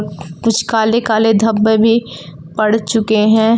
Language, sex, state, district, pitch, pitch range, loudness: Hindi, female, Jharkhand, Palamu, 220 Hz, 210-225 Hz, -13 LUFS